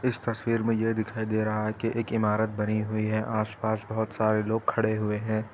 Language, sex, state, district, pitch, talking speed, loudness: Hindi, male, Uttar Pradesh, Etah, 110 Hz, 225 wpm, -28 LUFS